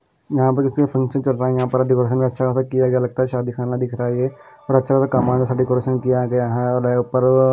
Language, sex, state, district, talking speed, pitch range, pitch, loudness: Hindi, male, Bihar, West Champaran, 285 wpm, 125-130 Hz, 130 Hz, -19 LUFS